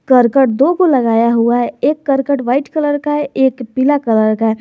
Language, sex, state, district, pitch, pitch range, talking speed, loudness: Hindi, male, Jharkhand, Garhwa, 265 Hz, 235-290 Hz, 210 wpm, -14 LUFS